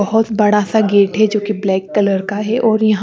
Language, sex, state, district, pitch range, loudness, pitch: Hindi, female, Chandigarh, Chandigarh, 200-220 Hz, -15 LUFS, 210 Hz